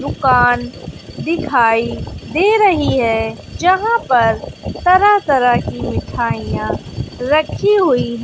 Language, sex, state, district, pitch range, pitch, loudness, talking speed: Hindi, female, Bihar, West Champaran, 240-375 Hz, 275 Hz, -15 LUFS, 95 wpm